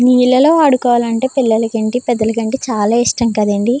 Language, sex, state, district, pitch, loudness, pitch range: Telugu, female, Andhra Pradesh, Krishna, 240 Hz, -13 LUFS, 225-255 Hz